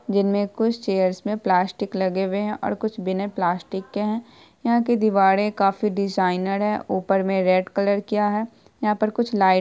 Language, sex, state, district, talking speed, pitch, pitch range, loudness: Hindi, female, Bihar, Saharsa, 195 wpm, 200 Hz, 190-210 Hz, -22 LUFS